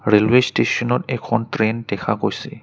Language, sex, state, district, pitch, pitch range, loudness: Assamese, male, Assam, Kamrup Metropolitan, 115 Hz, 105-120 Hz, -19 LUFS